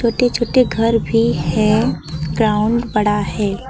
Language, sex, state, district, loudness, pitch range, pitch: Hindi, female, Uttar Pradesh, Lucknow, -17 LUFS, 210-235 Hz, 220 Hz